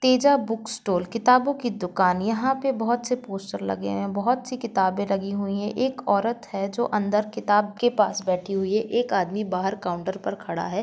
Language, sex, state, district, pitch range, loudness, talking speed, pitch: Hindi, female, Jharkhand, Jamtara, 195-240 Hz, -24 LUFS, 210 wpm, 210 Hz